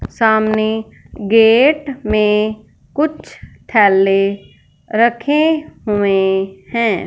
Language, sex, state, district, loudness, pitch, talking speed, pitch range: Hindi, male, Punjab, Fazilka, -15 LUFS, 215 Hz, 70 wpm, 200-235 Hz